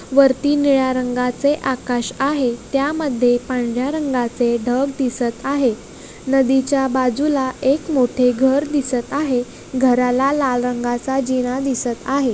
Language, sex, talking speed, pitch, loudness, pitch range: Marathi, female, 115 wpm, 260 Hz, -18 LUFS, 245-275 Hz